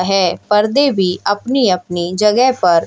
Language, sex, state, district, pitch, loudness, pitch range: Hindi, male, Haryana, Jhajjar, 205 Hz, -14 LUFS, 180-240 Hz